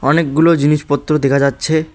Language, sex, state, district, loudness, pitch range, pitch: Bengali, male, West Bengal, Alipurduar, -14 LUFS, 140-160 Hz, 150 Hz